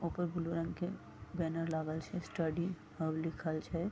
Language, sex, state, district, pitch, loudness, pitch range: Maithili, female, Bihar, Vaishali, 165 Hz, -39 LUFS, 160-175 Hz